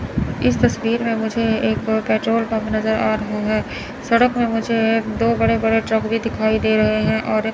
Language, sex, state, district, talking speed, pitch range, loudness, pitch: Hindi, female, Chandigarh, Chandigarh, 200 wpm, 215-225 Hz, -19 LUFS, 220 Hz